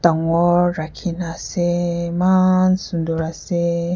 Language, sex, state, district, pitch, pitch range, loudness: Nagamese, female, Nagaland, Kohima, 175 Hz, 165-175 Hz, -19 LUFS